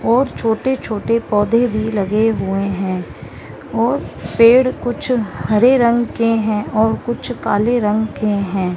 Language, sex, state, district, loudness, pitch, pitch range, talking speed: Hindi, female, Chhattisgarh, Bilaspur, -17 LUFS, 225 Hz, 210-240 Hz, 135 wpm